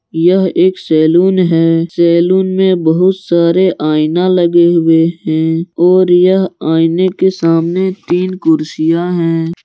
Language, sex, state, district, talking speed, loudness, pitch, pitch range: Hindi, male, Jharkhand, Deoghar, 125 wpm, -11 LUFS, 170 Hz, 165-185 Hz